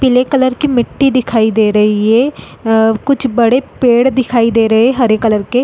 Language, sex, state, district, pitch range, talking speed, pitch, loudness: Hindi, female, Uttarakhand, Uttarkashi, 220-260 Hz, 190 wpm, 240 Hz, -12 LUFS